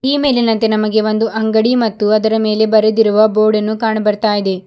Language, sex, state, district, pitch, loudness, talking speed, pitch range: Kannada, female, Karnataka, Bidar, 220 Hz, -13 LUFS, 165 wpm, 215-225 Hz